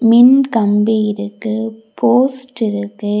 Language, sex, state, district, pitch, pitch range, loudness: Tamil, female, Tamil Nadu, Kanyakumari, 220 Hz, 210-240 Hz, -15 LUFS